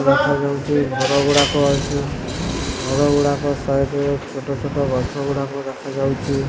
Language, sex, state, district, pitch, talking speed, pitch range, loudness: Odia, male, Odisha, Sambalpur, 140 Hz, 120 wpm, 135-145 Hz, -20 LUFS